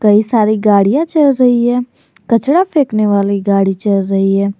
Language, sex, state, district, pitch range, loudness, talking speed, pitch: Hindi, male, Jharkhand, Garhwa, 200-250 Hz, -12 LUFS, 170 wpm, 215 Hz